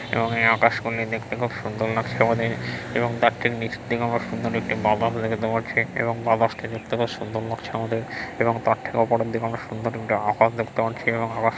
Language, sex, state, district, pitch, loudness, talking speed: Bengali, male, West Bengal, Dakshin Dinajpur, 115 Hz, -24 LUFS, 230 wpm